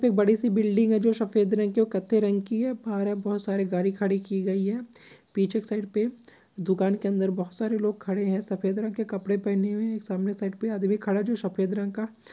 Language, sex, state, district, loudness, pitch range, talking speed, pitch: Marwari, female, Rajasthan, Nagaur, -27 LUFS, 195-220 Hz, 255 wpm, 205 Hz